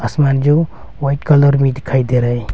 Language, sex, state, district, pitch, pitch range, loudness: Hindi, male, Arunachal Pradesh, Longding, 135 Hz, 125-145 Hz, -14 LUFS